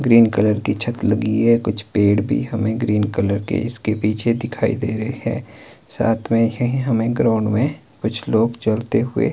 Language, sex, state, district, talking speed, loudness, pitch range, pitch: Hindi, male, Himachal Pradesh, Shimla, 185 wpm, -19 LUFS, 110-115 Hz, 115 Hz